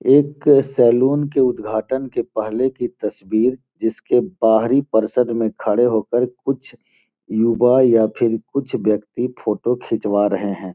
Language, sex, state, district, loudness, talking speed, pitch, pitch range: Hindi, male, Bihar, Gopalganj, -18 LUFS, 135 wpm, 120 Hz, 110-130 Hz